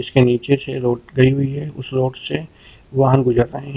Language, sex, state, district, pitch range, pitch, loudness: Hindi, male, Uttar Pradesh, Lucknow, 120-135 Hz, 130 Hz, -18 LUFS